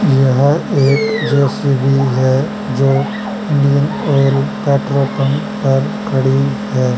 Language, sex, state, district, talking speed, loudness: Hindi, male, Haryana, Charkhi Dadri, 105 wpm, -14 LUFS